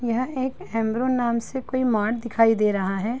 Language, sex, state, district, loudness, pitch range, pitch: Hindi, female, Chhattisgarh, Bilaspur, -23 LUFS, 225-255 Hz, 235 Hz